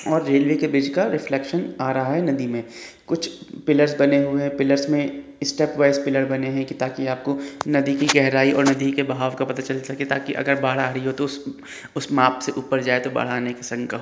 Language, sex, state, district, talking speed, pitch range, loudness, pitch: Hindi, male, Uttar Pradesh, Gorakhpur, 225 wpm, 130-140 Hz, -21 LUFS, 140 Hz